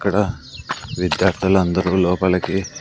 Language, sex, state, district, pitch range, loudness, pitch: Telugu, male, Andhra Pradesh, Sri Satya Sai, 90-100 Hz, -19 LUFS, 95 Hz